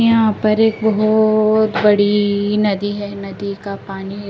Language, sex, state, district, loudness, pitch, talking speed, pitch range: Hindi, female, Delhi, New Delhi, -16 LUFS, 210 Hz, 140 wpm, 200-215 Hz